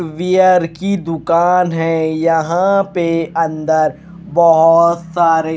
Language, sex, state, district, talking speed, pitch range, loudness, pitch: Hindi, male, Haryana, Rohtak, 110 wpm, 160-180 Hz, -14 LUFS, 165 Hz